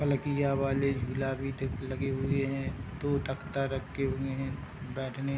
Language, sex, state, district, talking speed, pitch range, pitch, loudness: Hindi, male, Bihar, Sitamarhi, 165 wpm, 135-140 Hz, 135 Hz, -33 LUFS